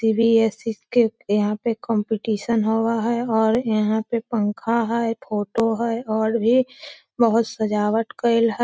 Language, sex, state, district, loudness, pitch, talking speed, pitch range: Magahi, female, Bihar, Lakhisarai, -21 LUFS, 225 Hz, 140 wpm, 220-235 Hz